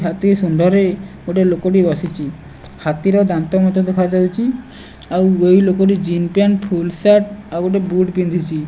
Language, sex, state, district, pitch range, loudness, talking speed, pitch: Odia, male, Odisha, Nuapada, 175-195 Hz, -15 LUFS, 140 wpm, 185 Hz